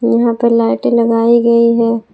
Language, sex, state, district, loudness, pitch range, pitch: Hindi, female, Jharkhand, Palamu, -12 LUFS, 230-235 Hz, 235 Hz